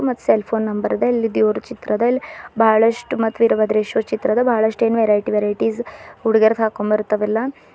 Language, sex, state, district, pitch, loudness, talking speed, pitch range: Kannada, female, Karnataka, Bidar, 225 Hz, -18 LUFS, 165 wpm, 215-235 Hz